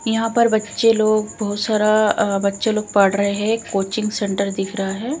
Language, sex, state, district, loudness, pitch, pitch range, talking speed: Hindi, female, Bihar, Katihar, -19 LUFS, 215 Hz, 200-220 Hz, 195 wpm